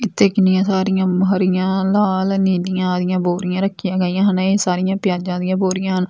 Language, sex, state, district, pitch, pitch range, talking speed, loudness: Punjabi, female, Punjab, Fazilka, 185 Hz, 185-195 Hz, 160 wpm, -17 LUFS